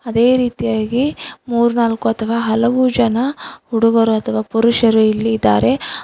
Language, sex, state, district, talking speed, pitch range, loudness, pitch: Kannada, female, Karnataka, Bidar, 110 wpm, 225-240 Hz, -15 LUFS, 230 Hz